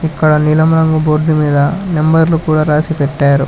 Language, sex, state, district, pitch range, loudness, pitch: Telugu, male, Telangana, Hyderabad, 150-160 Hz, -12 LUFS, 155 Hz